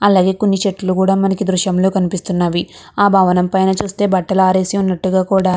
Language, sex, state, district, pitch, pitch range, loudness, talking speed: Telugu, female, Andhra Pradesh, Guntur, 190 Hz, 185-195 Hz, -15 LUFS, 160 wpm